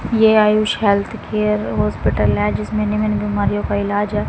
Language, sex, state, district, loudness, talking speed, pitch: Hindi, female, Haryana, Rohtak, -17 LUFS, 170 wpm, 110 Hz